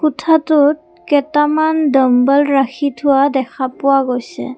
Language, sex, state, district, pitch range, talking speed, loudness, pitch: Assamese, female, Assam, Kamrup Metropolitan, 265-305 Hz, 105 wpm, -14 LUFS, 285 Hz